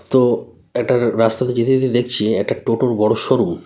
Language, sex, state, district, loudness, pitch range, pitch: Bengali, male, West Bengal, North 24 Parganas, -17 LUFS, 120-130 Hz, 125 Hz